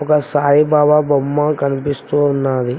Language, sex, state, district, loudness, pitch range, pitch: Telugu, male, Telangana, Mahabubabad, -15 LUFS, 140-150 Hz, 145 Hz